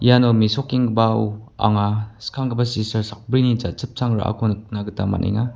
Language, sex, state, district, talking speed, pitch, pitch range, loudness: Garo, male, Meghalaya, West Garo Hills, 120 wpm, 110 Hz, 105-120 Hz, -20 LUFS